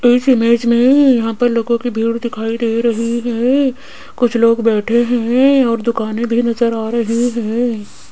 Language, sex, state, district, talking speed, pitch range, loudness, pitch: Hindi, female, Rajasthan, Jaipur, 170 wpm, 230-245 Hz, -15 LUFS, 235 Hz